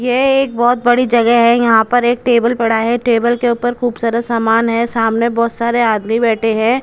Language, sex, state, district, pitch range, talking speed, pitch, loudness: Hindi, female, Punjab, Kapurthala, 230-245 Hz, 220 wpm, 235 Hz, -13 LUFS